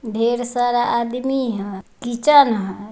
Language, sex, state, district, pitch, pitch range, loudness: Magahi, female, Bihar, Samastipur, 235 Hz, 220-245 Hz, -18 LUFS